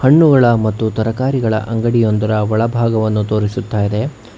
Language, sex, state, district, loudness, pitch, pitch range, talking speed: Kannada, male, Karnataka, Bangalore, -15 LUFS, 115 Hz, 110-120 Hz, 125 wpm